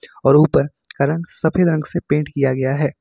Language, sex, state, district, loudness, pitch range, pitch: Hindi, male, Jharkhand, Ranchi, -18 LUFS, 140-165 Hz, 150 Hz